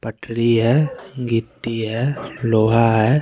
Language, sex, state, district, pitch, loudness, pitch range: Hindi, male, Bihar, West Champaran, 115 Hz, -19 LUFS, 115-125 Hz